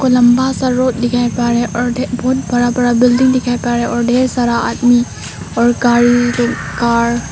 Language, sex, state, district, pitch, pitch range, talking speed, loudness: Hindi, female, Arunachal Pradesh, Papum Pare, 245 Hz, 240-250 Hz, 195 wpm, -13 LUFS